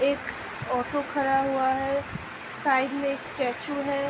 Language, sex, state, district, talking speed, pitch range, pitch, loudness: Hindi, female, Uttar Pradesh, Budaun, 160 wpm, 265-280 Hz, 275 Hz, -28 LUFS